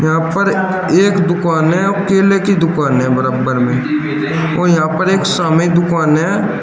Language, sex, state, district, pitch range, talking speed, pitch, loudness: Hindi, male, Uttar Pradesh, Shamli, 155-190 Hz, 165 wpm, 170 Hz, -13 LUFS